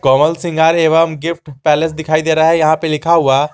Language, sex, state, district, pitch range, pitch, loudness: Hindi, male, Jharkhand, Garhwa, 150-165 Hz, 160 Hz, -13 LUFS